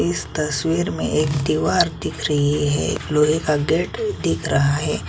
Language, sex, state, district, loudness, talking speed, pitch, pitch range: Hindi, male, Chhattisgarh, Kabirdham, -20 LUFS, 175 wpm, 150 Hz, 145-155 Hz